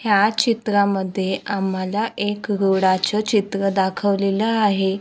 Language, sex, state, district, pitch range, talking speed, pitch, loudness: Marathi, female, Maharashtra, Gondia, 190-210 Hz, 95 wpm, 200 Hz, -20 LUFS